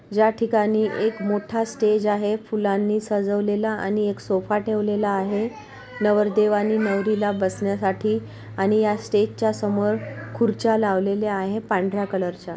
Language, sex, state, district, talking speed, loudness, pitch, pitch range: Marathi, female, Maharashtra, Pune, 125 wpm, -22 LUFS, 210 Hz, 200-215 Hz